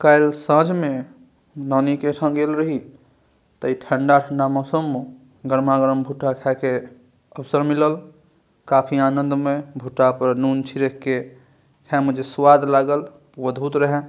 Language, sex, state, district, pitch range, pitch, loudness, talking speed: Maithili, male, Bihar, Saharsa, 130-145 Hz, 140 Hz, -20 LUFS, 150 wpm